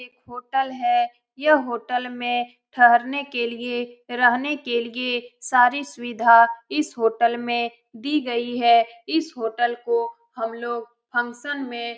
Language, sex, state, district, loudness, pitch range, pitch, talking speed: Hindi, female, Bihar, Saran, -22 LUFS, 235-270 Hz, 245 Hz, 140 wpm